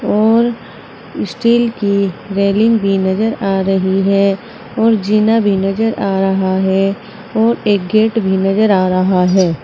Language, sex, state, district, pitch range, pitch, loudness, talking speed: Hindi, female, Uttar Pradesh, Saharanpur, 190-220 Hz, 200 Hz, -14 LUFS, 150 wpm